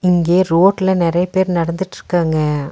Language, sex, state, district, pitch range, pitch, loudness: Tamil, female, Tamil Nadu, Nilgiris, 165-185 Hz, 175 Hz, -16 LUFS